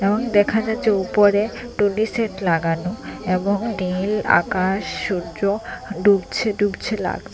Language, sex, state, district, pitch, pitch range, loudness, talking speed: Bengali, female, Assam, Hailakandi, 205 Hz, 190-220 Hz, -20 LUFS, 115 wpm